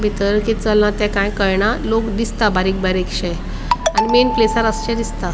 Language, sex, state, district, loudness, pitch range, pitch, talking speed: Konkani, female, Goa, North and South Goa, -17 LUFS, 200-225 Hz, 215 Hz, 155 wpm